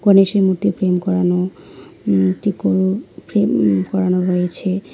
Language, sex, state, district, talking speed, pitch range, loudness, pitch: Bengali, female, West Bengal, Alipurduar, 110 wpm, 180-195 Hz, -17 LUFS, 185 Hz